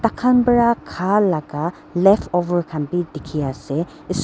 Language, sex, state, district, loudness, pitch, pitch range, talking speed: Nagamese, female, Nagaland, Dimapur, -19 LUFS, 175 Hz, 155-205 Hz, 155 wpm